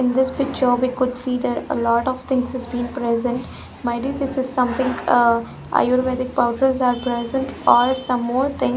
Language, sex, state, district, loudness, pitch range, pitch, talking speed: English, female, Punjab, Pathankot, -20 LUFS, 245-260 Hz, 255 Hz, 190 wpm